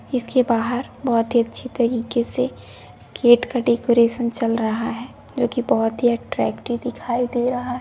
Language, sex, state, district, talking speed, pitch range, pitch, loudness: Hindi, female, Bihar, Begusarai, 175 wpm, 230-245 Hz, 240 Hz, -21 LUFS